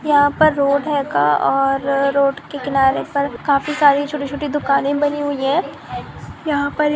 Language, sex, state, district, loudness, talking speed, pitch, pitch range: Hindi, female, Maharashtra, Chandrapur, -17 LUFS, 170 wpm, 285 Hz, 275-290 Hz